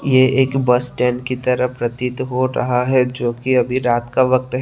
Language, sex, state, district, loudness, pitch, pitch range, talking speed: Hindi, male, Tripura, West Tripura, -17 LUFS, 125 Hz, 125-130 Hz, 220 wpm